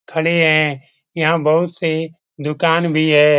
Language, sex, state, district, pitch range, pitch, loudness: Hindi, male, Bihar, Jamui, 150-165 Hz, 160 Hz, -16 LUFS